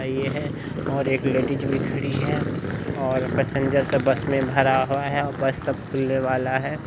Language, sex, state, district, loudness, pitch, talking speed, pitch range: Hindi, male, Bihar, Araria, -23 LUFS, 135 Hz, 190 wpm, 135-140 Hz